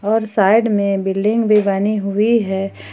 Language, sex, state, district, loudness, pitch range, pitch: Hindi, female, Jharkhand, Ranchi, -16 LUFS, 195-220 Hz, 210 Hz